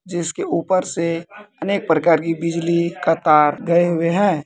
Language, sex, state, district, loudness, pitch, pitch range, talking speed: Maithili, male, Bihar, Kishanganj, -18 LUFS, 170 Hz, 165-180 Hz, 160 wpm